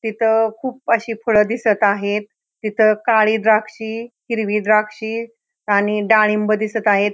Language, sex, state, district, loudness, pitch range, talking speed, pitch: Marathi, female, Maharashtra, Pune, -17 LUFS, 210-225 Hz, 125 wpm, 215 Hz